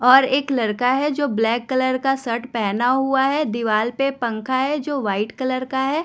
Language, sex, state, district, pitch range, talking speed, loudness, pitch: Hindi, female, Bihar, West Champaran, 235-270 Hz, 210 wpm, -20 LUFS, 260 Hz